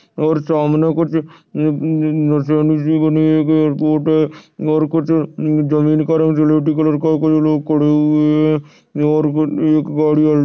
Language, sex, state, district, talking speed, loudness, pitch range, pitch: Hindi, male, Goa, North and South Goa, 165 wpm, -15 LUFS, 150-155 Hz, 155 Hz